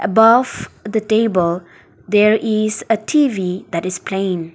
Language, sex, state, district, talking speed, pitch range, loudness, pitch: English, female, Nagaland, Dimapur, 130 wpm, 185-220 Hz, -17 LUFS, 210 Hz